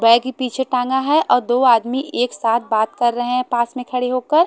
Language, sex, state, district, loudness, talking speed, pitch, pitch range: Hindi, female, Haryana, Charkhi Dadri, -18 LUFS, 240 wpm, 250 Hz, 240-260 Hz